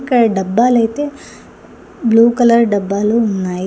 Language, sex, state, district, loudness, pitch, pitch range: Telugu, female, Telangana, Hyderabad, -14 LUFS, 230 Hz, 200-240 Hz